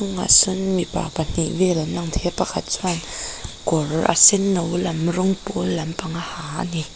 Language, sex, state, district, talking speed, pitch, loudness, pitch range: Mizo, female, Mizoram, Aizawl, 180 wpm, 175 Hz, -20 LUFS, 165-185 Hz